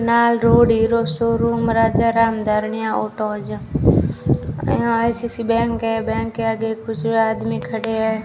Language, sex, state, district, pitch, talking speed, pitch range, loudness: Hindi, female, Rajasthan, Bikaner, 225 Hz, 140 wpm, 225-230 Hz, -19 LUFS